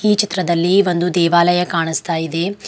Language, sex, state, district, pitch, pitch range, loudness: Kannada, female, Karnataka, Bidar, 175 Hz, 170-185 Hz, -16 LUFS